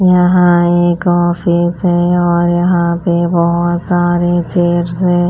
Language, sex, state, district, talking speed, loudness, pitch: Hindi, female, Punjab, Pathankot, 125 wpm, -12 LUFS, 175 Hz